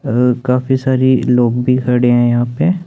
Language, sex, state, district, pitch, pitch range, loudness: Hindi, male, Chandigarh, Chandigarh, 125 Hz, 120-130 Hz, -13 LUFS